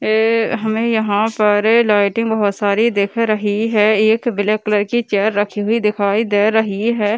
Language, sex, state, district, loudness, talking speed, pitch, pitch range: Hindi, female, Bihar, Gaya, -16 LUFS, 175 wpm, 215 Hz, 205-225 Hz